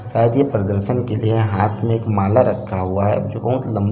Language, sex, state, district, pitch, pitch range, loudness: Hindi, male, Chhattisgarh, Bilaspur, 110 Hz, 100-115 Hz, -18 LUFS